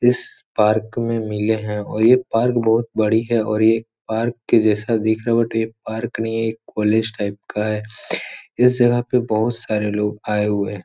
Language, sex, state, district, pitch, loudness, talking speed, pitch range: Hindi, male, Uttar Pradesh, Etah, 110 Hz, -20 LUFS, 205 wpm, 105-115 Hz